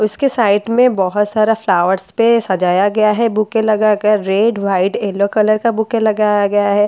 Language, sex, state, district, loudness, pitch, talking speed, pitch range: Hindi, female, Bihar, Katihar, -14 LUFS, 215 Hz, 185 wpm, 200-220 Hz